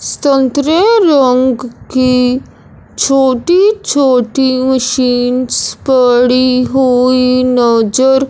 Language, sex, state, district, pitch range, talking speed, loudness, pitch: Hindi, male, Punjab, Fazilka, 250-270 Hz, 65 wpm, -11 LUFS, 255 Hz